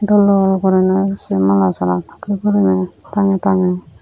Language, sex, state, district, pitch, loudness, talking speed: Chakma, female, Tripura, Unakoti, 190 Hz, -15 LUFS, 150 wpm